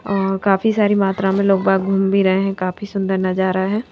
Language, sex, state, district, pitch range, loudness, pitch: Hindi, female, Madhya Pradesh, Bhopal, 190-200 Hz, -17 LUFS, 195 Hz